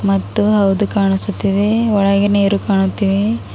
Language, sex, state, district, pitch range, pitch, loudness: Kannada, female, Karnataka, Bidar, 195-205 Hz, 200 Hz, -15 LUFS